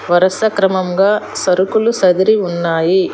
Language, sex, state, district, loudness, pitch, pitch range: Telugu, female, Telangana, Hyderabad, -14 LUFS, 190 Hz, 180-205 Hz